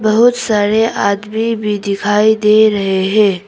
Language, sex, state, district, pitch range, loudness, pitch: Hindi, female, Arunachal Pradesh, Papum Pare, 205-220 Hz, -13 LUFS, 210 Hz